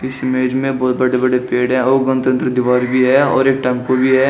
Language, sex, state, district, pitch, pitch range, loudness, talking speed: Hindi, male, Uttar Pradesh, Shamli, 130 Hz, 125-130 Hz, -15 LUFS, 250 wpm